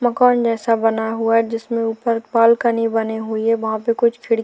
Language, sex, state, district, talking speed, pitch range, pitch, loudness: Hindi, female, Uttarakhand, Tehri Garhwal, 215 wpm, 225-235 Hz, 230 Hz, -18 LUFS